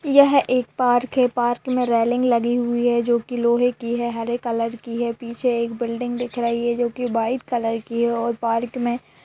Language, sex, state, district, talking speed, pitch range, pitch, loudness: Hindi, female, Bihar, Purnia, 205 wpm, 235-245 Hz, 240 Hz, -21 LUFS